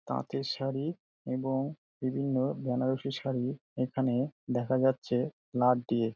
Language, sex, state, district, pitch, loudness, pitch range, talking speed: Bengali, male, West Bengal, Dakshin Dinajpur, 130 Hz, -32 LUFS, 125-135 Hz, 105 wpm